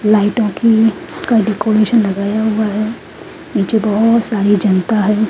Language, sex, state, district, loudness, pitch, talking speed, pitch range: Hindi, female, Uttarakhand, Tehri Garhwal, -14 LUFS, 215 Hz, 125 wpm, 210-225 Hz